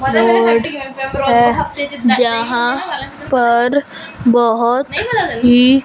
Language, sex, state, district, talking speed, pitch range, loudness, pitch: Hindi, female, Punjab, Fazilka, 50 wpm, 235-275 Hz, -14 LUFS, 245 Hz